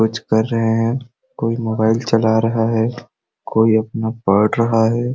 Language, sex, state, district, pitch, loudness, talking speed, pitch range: Sadri, male, Chhattisgarh, Jashpur, 115 Hz, -17 LUFS, 165 wpm, 110-115 Hz